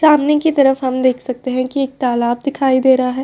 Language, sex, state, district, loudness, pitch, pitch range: Hindi, female, Uttar Pradesh, Varanasi, -15 LUFS, 260 Hz, 255-280 Hz